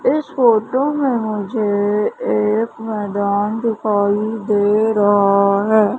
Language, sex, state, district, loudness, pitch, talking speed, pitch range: Hindi, female, Madhya Pradesh, Umaria, -17 LUFS, 215 Hz, 100 wpm, 205-230 Hz